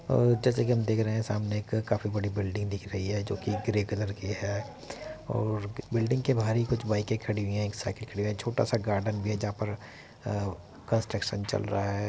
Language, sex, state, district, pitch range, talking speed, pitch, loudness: Hindi, male, Uttar Pradesh, Muzaffarnagar, 100-115 Hz, 235 wpm, 105 Hz, -30 LUFS